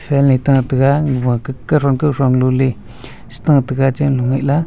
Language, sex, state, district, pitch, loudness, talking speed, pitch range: Wancho, male, Arunachal Pradesh, Longding, 135 Hz, -15 LUFS, 190 wpm, 130-140 Hz